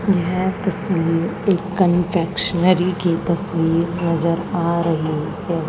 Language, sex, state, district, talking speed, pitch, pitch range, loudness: Hindi, female, Haryana, Charkhi Dadri, 105 wpm, 175 Hz, 165-185 Hz, -19 LUFS